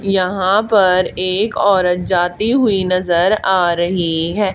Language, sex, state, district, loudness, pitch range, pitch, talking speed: Hindi, female, Haryana, Charkhi Dadri, -15 LUFS, 180-200 Hz, 185 Hz, 130 wpm